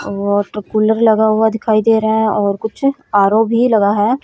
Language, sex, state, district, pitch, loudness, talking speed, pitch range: Hindi, female, Haryana, Rohtak, 220 Hz, -14 LUFS, 200 wpm, 205-225 Hz